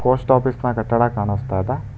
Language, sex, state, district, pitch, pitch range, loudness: Kannada, male, Karnataka, Bangalore, 120 Hz, 110-125 Hz, -19 LUFS